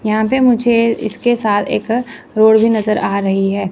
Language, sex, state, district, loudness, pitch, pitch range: Hindi, female, Chandigarh, Chandigarh, -14 LUFS, 220 Hz, 205-235 Hz